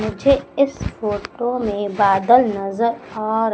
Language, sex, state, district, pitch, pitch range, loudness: Hindi, female, Madhya Pradesh, Umaria, 220 Hz, 205-245 Hz, -19 LUFS